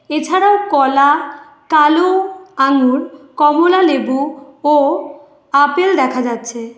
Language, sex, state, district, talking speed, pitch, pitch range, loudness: Bengali, female, West Bengal, Alipurduar, 80 wpm, 290 Hz, 275-320 Hz, -14 LUFS